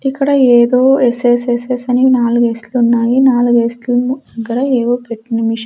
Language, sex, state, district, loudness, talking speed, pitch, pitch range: Telugu, female, Andhra Pradesh, Sri Satya Sai, -13 LUFS, 160 wpm, 245 Hz, 235-255 Hz